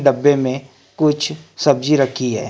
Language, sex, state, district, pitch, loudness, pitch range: Hindi, male, Maharashtra, Gondia, 140 Hz, -17 LUFS, 130-150 Hz